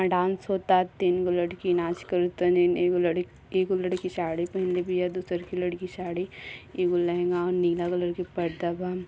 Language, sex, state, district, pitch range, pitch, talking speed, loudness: Bhojpuri, female, Uttar Pradesh, Gorakhpur, 175-180 Hz, 180 Hz, 170 wpm, -27 LUFS